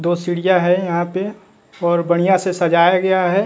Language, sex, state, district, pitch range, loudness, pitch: Hindi, male, Bihar, West Champaran, 170-190 Hz, -16 LUFS, 180 Hz